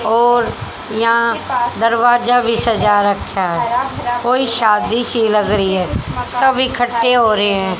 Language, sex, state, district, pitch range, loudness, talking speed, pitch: Hindi, female, Haryana, Rohtak, 210-245 Hz, -15 LUFS, 140 wpm, 230 Hz